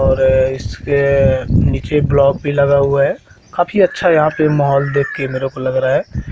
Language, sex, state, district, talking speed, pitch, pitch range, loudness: Hindi, male, Madhya Pradesh, Katni, 150 wpm, 140 Hz, 130-145 Hz, -14 LUFS